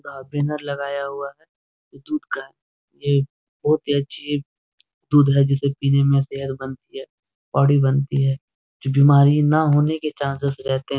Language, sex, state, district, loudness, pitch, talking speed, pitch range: Hindi, male, Bihar, Jahanabad, -20 LUFS, 140 Hz, 185 wpm, 135-145 Hz